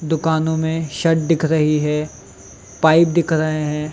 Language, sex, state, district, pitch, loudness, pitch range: Hindi, male, Chhattisgarh, Bilaspur, 160 Hz, -18 LUFS, 155-160 Hz